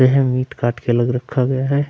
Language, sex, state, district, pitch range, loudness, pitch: Hindi, male, Bihar, Vaishali, 125-135 Hz, -18 LUFS, 130 Hz